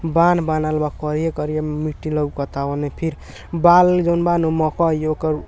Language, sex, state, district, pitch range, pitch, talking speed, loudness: Hindi, male, Bihar, East Champaran, 150-165 Hz, 155 Hz, 130 wpm, -19 LUFS